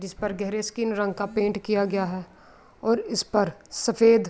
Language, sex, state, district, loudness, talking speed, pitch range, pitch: Urdu, female, Andhra Pradesh, Anantapur, -25 LUFS, 195 wpm, 200-220 Hz, 210 Hz